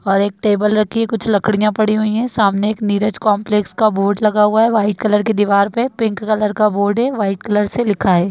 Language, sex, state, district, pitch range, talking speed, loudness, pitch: Hindi, female, Bihar, Jahanabad, 205-220 Hz, 245 wpm, -16 LUFS, 210 Hz